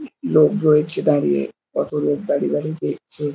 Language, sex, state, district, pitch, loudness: Bengali, male, West Bengal, Jhargram, 150 Hz, -19 LUFS